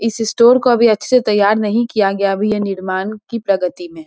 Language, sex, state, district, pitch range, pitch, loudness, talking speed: Hindi, female, Bihar, Muzaffarpur, 200-235 Hz, 215 Hz, -15 LUFS, 250 wpm